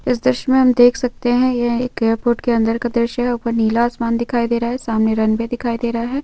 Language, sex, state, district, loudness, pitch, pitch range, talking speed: Hindi, female, West Bengal, North 24 Parganas, -17 LUFS, 240 Hz, 230-245 Hz, 270 wpm